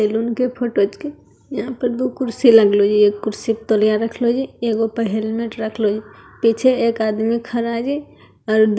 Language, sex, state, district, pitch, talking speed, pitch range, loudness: Angika, female, Bihar, Begusarai, 230 Hz, 185 wpm, 215-245 Hz, -18 LUFS